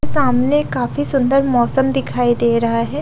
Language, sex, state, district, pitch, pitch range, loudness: Hindi, female, Bihar, Katihar, 245 Hz, 235-270 Hz, -15 LUFS